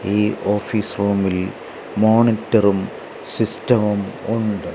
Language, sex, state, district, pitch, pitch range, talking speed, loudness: Malayalam, male, Kerala, Kasaragod, 105 Hz, 100-110 Hz, 75 wpm, -19 LUFS